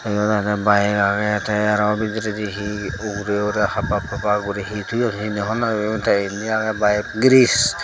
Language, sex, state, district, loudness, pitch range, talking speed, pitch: Chakma, female, Tripura, Dhalai, -20 LUFS, 105-110 Hz, 185 wpm, 105 Hz